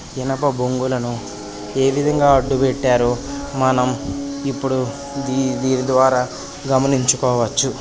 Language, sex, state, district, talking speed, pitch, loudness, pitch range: Telugu, male, Andhra Pradesh, Srikakulam, 85 wpm, 130 Hz, -19 LUFS, 125-135 Hz